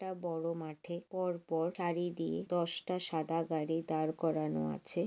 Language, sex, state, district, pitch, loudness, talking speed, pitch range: Bengali, female, West Bengal, Jalpaiguri, 165 Hz, -36 LUFS, 140 wpm, 160-175 Hz